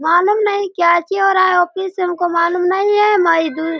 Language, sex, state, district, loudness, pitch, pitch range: Hindi, female, Bihar, Sitamarhi, -15 LUFS, 360 Hz, 340-390 Hz